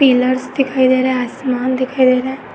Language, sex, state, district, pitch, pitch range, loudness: Hindi, female, Uttar Pradesh, Etah, 255 Hz, 255-260 Hz, -15 LUFS